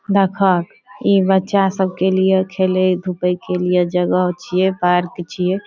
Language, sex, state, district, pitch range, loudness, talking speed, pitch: Maithili, female, Bihar, Saharsa, 180-190 Hz, -17 LUFS, 150 wpm, 185 Hz